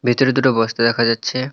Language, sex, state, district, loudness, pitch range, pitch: Bengali, male, West Bengal, Cooch Behar, -17 LUFS, 115-130 Hz, 120 Hz